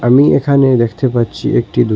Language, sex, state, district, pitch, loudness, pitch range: Bengali, male, Assam, Hailakandi, 125 Hz, -12 LUFS, 115-135 Hz